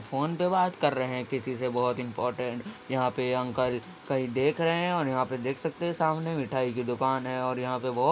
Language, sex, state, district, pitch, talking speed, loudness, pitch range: Hindi, male, Uttar Pradesh, Jyotiba Phule Nagar, 130 Hz, 245 wpm, -29 LUFS, 125-150 Hz